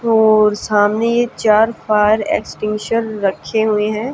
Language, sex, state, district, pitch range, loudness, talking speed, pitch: Hindi, female, Haryana, Jhajjar, 210-230 Hz, -15 LUFS, 130 wpm, 215 Hz